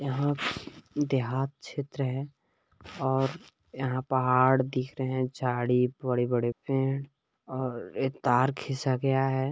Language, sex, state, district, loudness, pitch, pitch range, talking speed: Hindi, male, Chhattisgarh, Balrampur, -29 LUFS, 130 Hz, 130-135 Hz, 120 wpm